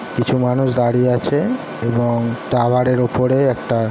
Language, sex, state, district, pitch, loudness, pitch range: Bengali, male, West Bengal, Kolkata, 125 Hz, -17 LUFS, 120-125 Hz